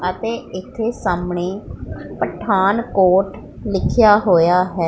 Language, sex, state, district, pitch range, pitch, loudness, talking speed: Punjabi, female, Punjab, Pathankot, 180-220 Hz, 190 Hz, -17 LUFS, 85 wpm